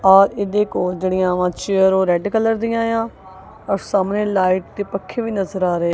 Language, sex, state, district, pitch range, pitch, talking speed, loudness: Punjabi, female, Punjab, Kapurthala, 185-210 Hz, 195 Hz, 210 wpm, -19 LUFS